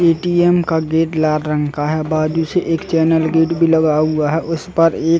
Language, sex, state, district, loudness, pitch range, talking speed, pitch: Hindi, male, Uttar Pradesh, Varanasi, -16 LUFS, 155-165 Hz, 210 wpm, 160 Hz